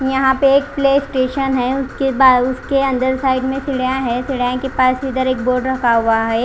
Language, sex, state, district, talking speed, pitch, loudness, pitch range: Hindi, female, Chandigarh, Chandigarh, 195 wpm, 260 Hz, -16 LUFS, 255-270 Hz